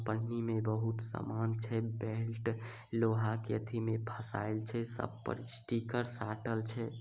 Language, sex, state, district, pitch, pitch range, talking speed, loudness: Maithili, male, Bihar, Samastipur, 115 Hz, 110-115 Hz, 155 wpm, -38 LUFS